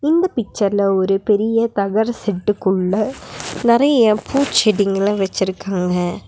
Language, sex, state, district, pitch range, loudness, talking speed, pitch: Tamil, female, Tamil Nadu, Nilgiris, 195-230 Hz, -17 LUFS, 85 wpm, 210 Hz